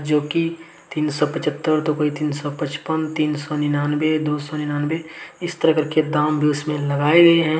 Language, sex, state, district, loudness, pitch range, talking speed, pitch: Hindi, male, Jharkhand, Deoghar, -20 LUFS, 150-160 Hz, 190 wpm, 150 Hz